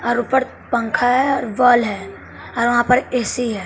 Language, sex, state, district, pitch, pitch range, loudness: Hindi, male, Bihar, West Champaran, 240 Hz, 225-250 Hz, -17 LUFS